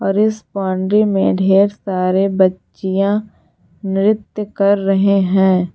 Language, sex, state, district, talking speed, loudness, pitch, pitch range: Hindi, female, Jharkhand, Garhwa, 115 wpm, -16 LUFS, 195 Hz, 190-205 Hz